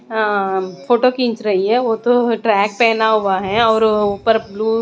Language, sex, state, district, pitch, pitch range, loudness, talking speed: Hindi, female, Odisha, Malkangiri, 220 Hz, 200-230 Hz, -16 LUFS, 185 wpm